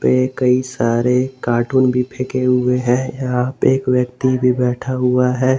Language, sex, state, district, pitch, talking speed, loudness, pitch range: Hindi, male, Jharkhand, Garhwa, 125 Hz, 170 wpm, -17 LUFS, 125-130 Hz